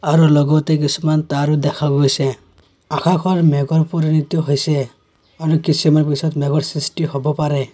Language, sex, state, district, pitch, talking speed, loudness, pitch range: Assamese, male, Assam, Kamrup Metropolitan, 150 Hz, 130 wpm, -17 LUFS, 140-160 Hz